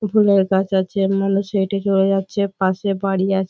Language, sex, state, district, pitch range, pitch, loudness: Bengali, female, West Bengal, Malda, 190-200 Hz, 195 Hz, -18 LUFS